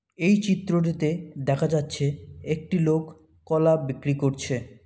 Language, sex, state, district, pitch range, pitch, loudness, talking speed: Bengali, male, West Bengal, Malda, 140-165 Hz, 155 Hz, -25 LUFS, 110 wpm